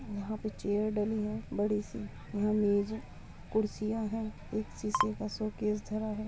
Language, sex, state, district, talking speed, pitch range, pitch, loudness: Hindi, female, Uttar Pradesh, Muzaffarnagar, 180 wpm, 210-215 Hz, 210 Hz, -34 LUFS